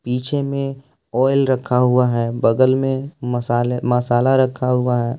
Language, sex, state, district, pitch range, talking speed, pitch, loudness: Hindi, male, Jharkhand, Ranchi, 125-135 Hz, 150 wpm, 125 Hz, -18 LUFS